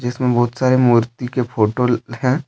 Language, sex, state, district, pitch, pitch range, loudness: Hindi, male, Jharkhand, Deoghar, 125 Hz, 120-125 Hz, -17 LUFS